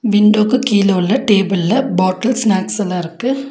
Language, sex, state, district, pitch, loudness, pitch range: Tamil, female, Tamil Nadu, Nilgiris, 210 Hz, -14 LUFS, 190-245 Hz